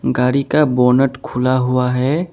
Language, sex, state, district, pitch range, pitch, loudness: Hindi, male, Assam, Kamrup Metropolitan, 125-135 Hz, 125 Hz, -16 LUFS